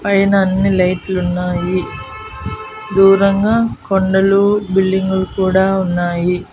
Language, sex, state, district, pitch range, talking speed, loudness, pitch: Telugu, female, Andhra Pradesh, Annamaya, 180-195 Hz, 90 wpm, -14 LUFS, 190 Hz